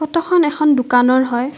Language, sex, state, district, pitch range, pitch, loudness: Assamese, female, Assam, Kamrup Metropolitan, 250-310 Hz, 280 Hz, -15 LUFS